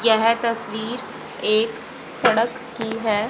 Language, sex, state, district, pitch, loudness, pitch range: Hindi, female, Haryana, Rohtak, 230 Hz, -21 LUFS, 225-255 Hz